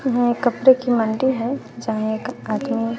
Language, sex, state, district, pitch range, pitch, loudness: Hindi, female, Bihar, West Champaran, 225-255 Hz, 245 Hz, -20 LUFS